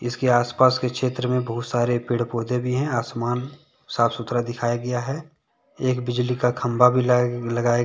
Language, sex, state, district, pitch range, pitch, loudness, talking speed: Hindi, male, Jharkhand, Deoghar, 120-125 Hz, 125 Hz, -23 LUFS, 190 wpm